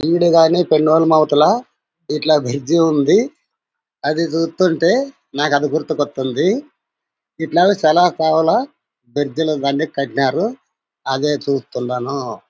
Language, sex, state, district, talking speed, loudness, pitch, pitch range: Telugu, male, Andhra Pradesh, Anantapur, 90 wpm, -16 LUFS, 155 Hz, 145-170 Hz